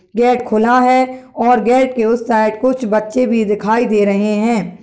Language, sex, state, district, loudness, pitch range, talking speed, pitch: Hindi, male, Bihar, Kishanganj, -14 LUFS, 215-250 Hz, 185 wpm, 230 Hz